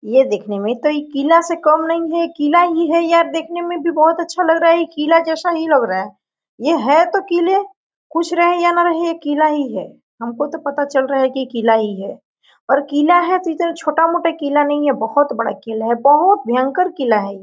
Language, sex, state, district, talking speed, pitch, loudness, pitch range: Hindi, female, Jharkhand, Sahebganj, 250 wpm, 315 Hz, -16 LUFS, 275-335 Hz